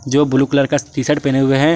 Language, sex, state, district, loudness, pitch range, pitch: Hindi, male, Jharkhand, Garhwa, -16 LUFS, 135-145 Hz, 140 Hz